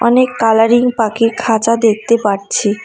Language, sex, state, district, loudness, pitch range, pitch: Bengali, female, West Bengal, Cooch Behar, -13 LUFS, 220-235 Hz, 230 Hz